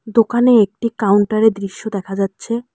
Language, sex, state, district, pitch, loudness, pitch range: Bengali, female, West Bengal, Alipurduar, 220 Hz, -16 LUFS, 200-230 Hz